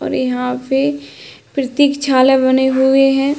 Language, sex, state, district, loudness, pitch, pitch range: Hindi, female, Uttar Pradesh, Hamirpur, -14 LUFS, 270 Hz, 260-275 Hz